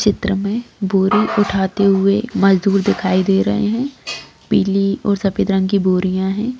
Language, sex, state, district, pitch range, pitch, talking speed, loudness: Hindi, female, Bihar, Lakhisarai, 195-210 Hz, 195 Hz, 165 wpm, -16 LUFS